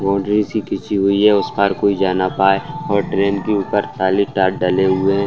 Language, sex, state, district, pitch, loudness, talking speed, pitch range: Hindi, male, Bihar, Saran, 100 Hz, -17 LUFS, 240 wpm, 95-100 Hz